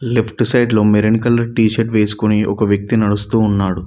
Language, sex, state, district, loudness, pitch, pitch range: Telugu, male, Telangana, Mahabubabad, -15 LUFS, 110 Hz, 105-115 Hz